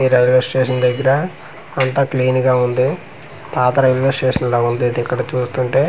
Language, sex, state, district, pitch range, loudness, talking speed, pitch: Telugu, male, Andhra Pradesh, Manyam, 125-135 Hz, -16 LUFS, 155 wpm, 130 Hz